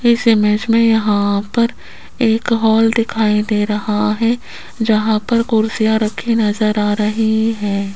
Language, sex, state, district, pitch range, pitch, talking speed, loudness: Hindi, female, Rajasthan, Jaipur, 210-230 Hz, 220 Hz, 145 wpm, -15 LUFS